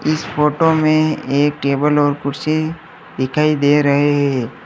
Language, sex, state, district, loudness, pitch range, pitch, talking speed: Hindi, male, Uttar Pradesh, Lalitpur, -16 LUFS, 140-155 Hz, 150 Hz, 140 wpm